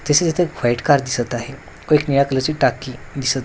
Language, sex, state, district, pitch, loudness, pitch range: Marathi, male, Maharashtra, Washim, 135 Hz, -18 LUFS, 130-150 Hz